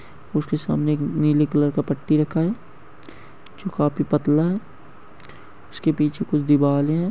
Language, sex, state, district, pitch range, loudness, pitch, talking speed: Hindi, male, Bihar, Madhepura, 145-160 Hz, -21 LUFS, 150 Hz, 160 wpm